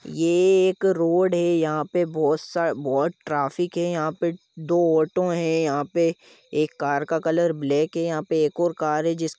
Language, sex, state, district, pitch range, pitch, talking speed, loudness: Hindi, male, Jharkhand, Jamtara, 155-175 Hz, 165 Hz, 205 wpm, -23 LUFS